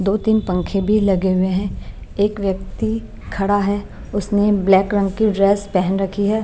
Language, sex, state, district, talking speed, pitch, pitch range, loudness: Hindi, female, Maharashtra, Mumbai Suburban, 170 wpm, 200 Hz, 195-205 Hz, -18 LUFS